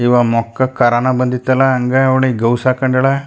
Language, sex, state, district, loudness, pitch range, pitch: Kannada, male, Karnataka, Chamarajanagar, -14 LUFS, 120-130 Hz, 130 Hz